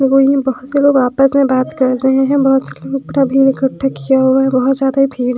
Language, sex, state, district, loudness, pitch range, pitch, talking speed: Hindi, female, Bihar, West Champaran, -13 LUFS, 260-275 Hz, 270 Hz, 225 wpm